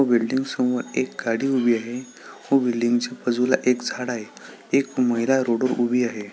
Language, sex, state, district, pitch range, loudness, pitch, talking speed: Marathi, male, Maharashtra, Solapur, 120-130 Hz, -22 LUFS, 125 Hz, 170 wpm